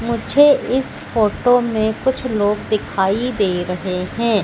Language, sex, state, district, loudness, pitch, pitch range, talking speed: Hindi, female, Madhya Pradesh, Katni, -18 LUFS, 220 Hz, 200-245 Hz, 135 wpm